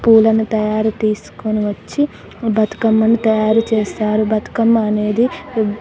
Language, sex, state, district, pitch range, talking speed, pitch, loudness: Telugu, female, Telangana, Nalgonda, 215-225 Hz, 95 wpm, 220 Hz, -16 LUFS